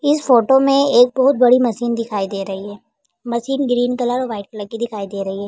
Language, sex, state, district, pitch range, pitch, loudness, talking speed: Hindi, female, Uttar Pradesh, Jalaun, 205-255 Hz, 240 Hz, -17 LUFS, 240 wpm